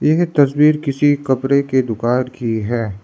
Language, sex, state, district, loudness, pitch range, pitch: Hindi, male, Arunachal Pradesh, Lower Dibang Valley, -16 LUFS, 120-145 Hz, 135 Hz